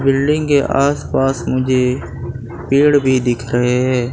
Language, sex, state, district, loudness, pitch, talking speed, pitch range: Hindi, male, Gujarat, Valsad, -15 LUFS, 130 Hz, 130 wpm, 125-140 Hz